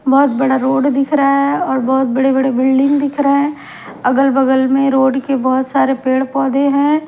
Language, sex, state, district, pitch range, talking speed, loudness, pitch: Hindi, female, Himachal Pradesh, Shimla, 265-280 Hz, 170 wpm, -14 LUFS, 270 Hz